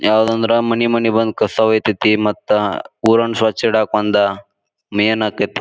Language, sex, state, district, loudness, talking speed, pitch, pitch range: Kannada, male, Karnataka, Bijapur, -16 LUFS, 140 wpm, 110 Hz, 105-115 Hz